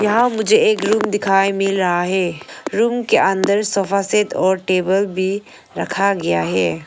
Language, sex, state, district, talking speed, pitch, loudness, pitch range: Hindi, female, Arunachal Pradesh, Longding, 165 wpm, 195 Hz, -17 LUFS, 185-210 Hz